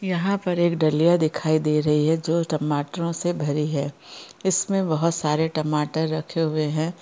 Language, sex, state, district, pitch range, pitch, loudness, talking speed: Hindi, female, Chhattisgarh, Bastar, 150-170 Hz, 160 Hz, -23 LUFS, 170 wpm